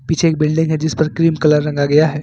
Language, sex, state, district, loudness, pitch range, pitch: Hindi, male, Jharkhand, Ranchi, -15 LUFS, 150-160 Hz, 155 Hz